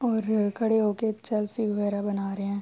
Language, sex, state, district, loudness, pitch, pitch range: Urdu, female, Andhra Pradesh, Anantapur, -27 LUFS, 210 Hz, 205-220 Hz